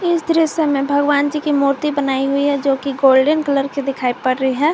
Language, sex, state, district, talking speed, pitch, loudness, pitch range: Hindi, female, Jharkhand, Garhwa, 230 wpm, 280 Hz, -16 LUFS, 275-300 Hz